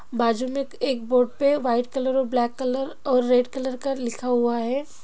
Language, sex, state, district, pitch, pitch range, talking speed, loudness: Hindi, female, Bihar, Jahanabad, 255 Hz, 245-265 Hz, 200 wpm, -24 LUFS